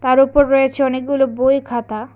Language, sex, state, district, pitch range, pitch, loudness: Bengali, female, Tripura, West Tripura, 255-275 Hz, 265 Hz, -16 LUFS